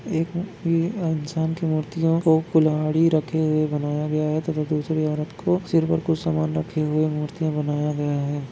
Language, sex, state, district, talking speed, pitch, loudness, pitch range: Hindi, male, Chhattisgarh, Bastar, 185 wpm, 155 Hz, -23 LUFS, 150-165 Hz